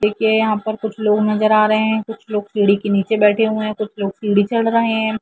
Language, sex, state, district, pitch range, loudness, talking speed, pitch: Hindi, female, Jharkhand, Jamtara, 210-220 Hz, -17 LUFS, 275 wpm, 215 Hz